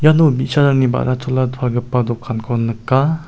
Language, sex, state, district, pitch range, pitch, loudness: Garo, male, Meghalaya, South Garo Hills, 120-140 Hz, 130 Hz, -17 LUFS